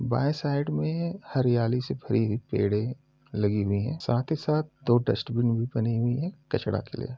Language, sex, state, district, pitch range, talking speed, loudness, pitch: Hindi, male, Uttar Pradesh, Muzaffarnagar, 115-145 Hz, 190 wpm, -27 LUFS, 125 Hz